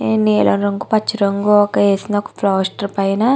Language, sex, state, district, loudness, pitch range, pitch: Telugu, female, Andhra Pradesh, Chittoor, -16 LUFS, 190-205 Hz, 200 Hz